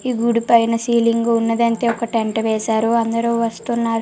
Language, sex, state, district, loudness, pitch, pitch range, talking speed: Telugu, female, Telangana, Karimnagar, -18 LUFS, 230 Hz, 225-235 Hz, 150 wpm